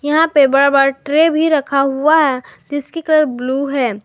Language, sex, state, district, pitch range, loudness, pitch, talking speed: Hindi, female, Jharkhand, Garhwa, 275-310 Hz, -14 LUFS, 280 Hz, 195 wpm